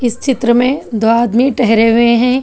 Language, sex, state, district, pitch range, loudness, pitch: Hindi, female, Telangana, Hyderabad, 230-255 Hz, -12 LUFS, 240 Hz